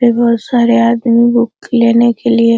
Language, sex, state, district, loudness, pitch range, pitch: Hindi, female, Bihar, Araria, -11 LUFS, 230-235 Hz, 235 Hz